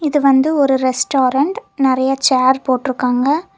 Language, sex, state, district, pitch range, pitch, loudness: Tamil, female, Tamil Nadu, Kanyakumari, 260-290 Hz, 265 Hz, -15 LUFS